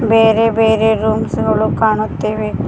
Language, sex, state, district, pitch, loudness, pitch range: Kannada, female, Karnataka, Koppal, 220 Hz, -14 LUFS, 215-225 Hz